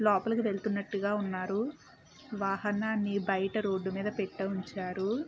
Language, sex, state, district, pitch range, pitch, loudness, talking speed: Telugu, female, Andhra Pradesh, Krishna, 195-215 Hz, 200 Hz, -33 LUFS, 100 wpm